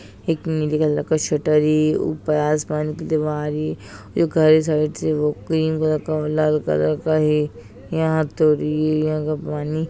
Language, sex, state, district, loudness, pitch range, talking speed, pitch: Hindi, female, Rajasthan, Nagaur, -20 LUFS, 150-155 Hz, 175 wpm, 155 Hz